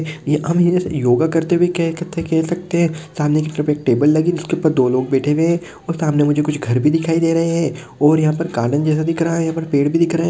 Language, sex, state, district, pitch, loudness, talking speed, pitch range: Hindi, male, Rajasthan, Nagaur, 160 Hz, -17 LUFS, 245 wpm, 150-165 Hz